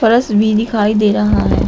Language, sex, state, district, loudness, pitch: Hindi, female, Uttar Pradesh, Shamli, -13 LUFS, 210 Hz